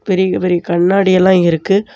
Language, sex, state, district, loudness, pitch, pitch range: Tamil, male, Tamil Nadu, Namakkal, -13 LUFS, 185 Hz, 175-190 Hz